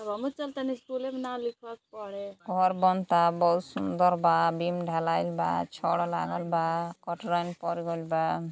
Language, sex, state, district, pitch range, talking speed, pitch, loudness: Hindi, female, Uttar Pradesh, Gorakhpur, 170-210 Hz, 170 wpm, 175 Hz, -29 LUFS